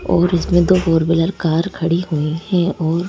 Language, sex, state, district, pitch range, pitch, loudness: Hindi, female, Madhya Pradesh, Bhopal, 165-175 Hz, 170 Hz, -17 LUFS